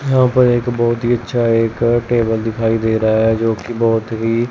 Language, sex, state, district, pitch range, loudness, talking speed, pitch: Hindi, male, Chandigarh, Chandigarh, 115-120 Hz, -16 LUFS, 200 wpm, 115 Hz